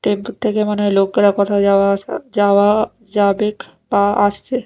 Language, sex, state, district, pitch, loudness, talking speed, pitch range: Bengali, female, Odisha, Nuapada, 205 Hz, -16 LUFS, 140 wpm, 200-210 Hz